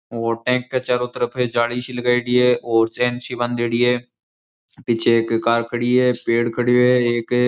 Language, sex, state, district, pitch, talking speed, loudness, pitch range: Rajasthani, male, Rajasthan, Churu, 120 Hz, 175 wpm, -19 LUFS, 120-125 Hz